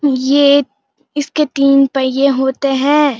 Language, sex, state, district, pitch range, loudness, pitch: Hindi, female, Uttarakhand, Uttarkashi, 270-285 Hz, -13 LUFS, 275 Hz